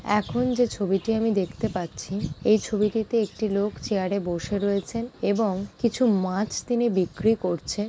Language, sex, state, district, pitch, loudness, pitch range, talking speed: Bengali, female, West Bengal, Jalpaiguri, 205 Hz, -25 LUFS, 195-225 Hz, 150 wpm